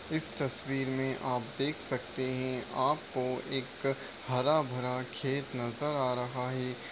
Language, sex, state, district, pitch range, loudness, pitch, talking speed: Hindi, male, Uttar Pradesh, Deoria, 125-135 Hz, -33 LUFS, 130 Hz, 140 wpm